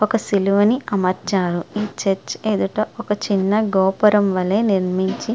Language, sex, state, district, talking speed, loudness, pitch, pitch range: Telugu, female, Andhra Pradesh, Srikakulam, 100 wpm, -19 LUFS, 200 Hz, 190-215 Hz